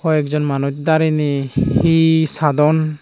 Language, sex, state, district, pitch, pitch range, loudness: Chakma, male, Tripura, Unakoti, 150 Hz, 145-160 Hz, -16 LUFS